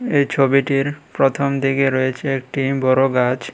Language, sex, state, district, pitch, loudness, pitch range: Bengali, male, Tripura, West Tripura, 135 Hz, -18 LUFS, 130-140 Hz